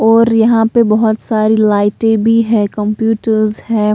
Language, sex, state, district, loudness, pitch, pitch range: Hindi, female, Bihar, Katihar, -12 LUFS, 220 Hz, 215-225 Hz